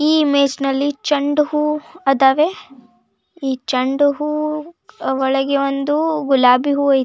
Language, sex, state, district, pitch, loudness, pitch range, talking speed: Kannada, female, Karnataka, Belgaum, 285 Hz, -17 LUFS, 270-300 Hz, 110 wpm